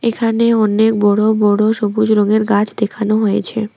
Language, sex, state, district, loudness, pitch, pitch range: Bengali, female, West Bengal, Alipurduar, -14 LUFS, 215 Hz, 210-220 Hz